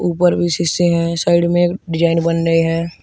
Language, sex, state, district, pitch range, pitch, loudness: Hindi, male, Uttar Pradesh, Shamli, 165-175 Hz, 170 Hz, -16 LUFS